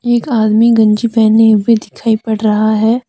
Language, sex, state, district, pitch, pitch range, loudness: Hindi, female, Jharkhand, Deoghar, 225 Hz, 215-235 Hz, -11 LUFS